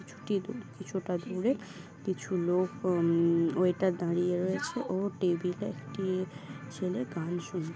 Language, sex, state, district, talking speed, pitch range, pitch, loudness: Bengali, female, West Bengal, Kolkata, 125 wpm, 170-190 Hz, 180 Hz, -32 LUFS